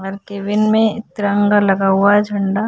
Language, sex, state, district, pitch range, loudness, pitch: Hindi, female, Uttar Pradesh, Jyotiba Phule Nagar, 195-210 Hz, -15 LUFS, 205 Hz